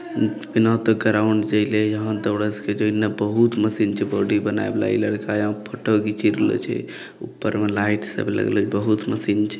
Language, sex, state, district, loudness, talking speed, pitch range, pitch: Angika, male, Bihar, Bhagalpur, -21 LUFS, 195 wpm, 105-110 Hz, 105 Hz